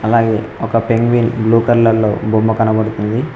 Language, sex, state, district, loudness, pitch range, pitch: Telugu, male, Telangana, Mahabubabad, -14 LUFS, 110-115 Hz, 115 Hz